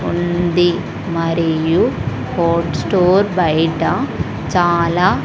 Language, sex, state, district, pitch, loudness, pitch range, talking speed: Telugu, female, Andhra Pradesh, Sri Satya Sai, 170 Hz, -16 LUFS, 160-175 Hz, 70 wpm